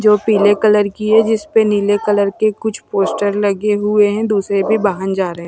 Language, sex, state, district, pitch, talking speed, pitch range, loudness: Hindi, female, Maharashtra, Washim, 210 Hz, 230 wpm, 200-215 Hz, -15 LUFS